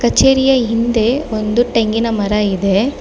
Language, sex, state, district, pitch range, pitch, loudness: Kannada, female, Karnataka, Bangalore, 215-245 Hz, 230 Hz, -14 LUFS